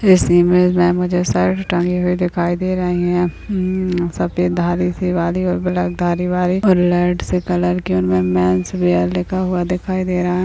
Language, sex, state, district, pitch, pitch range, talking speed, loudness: Hindi, female, Rajasthan, Churu, 180 Hz, 175-180 Hz, 190 wpm, -17 LUFS